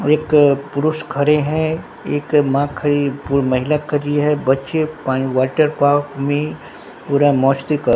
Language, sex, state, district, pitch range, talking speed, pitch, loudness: Hindi, male, Bihar, Katihar, 140-150 Hz, 145 wpm, 145 Hz, -17 LUFS